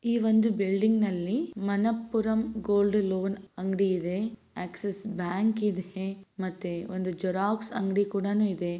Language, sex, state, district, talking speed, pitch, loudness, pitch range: Kannada, female, Karnataka, Raichur, 125 wpm, 200 Hz, -29 LUFS, 190-220 Hz